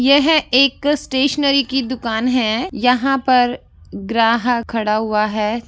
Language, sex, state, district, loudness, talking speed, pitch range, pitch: Hindi, male, Jharkhand, Jamtara, -16 LUFS, 125 wpm, 225-270 Hz, 250 Hz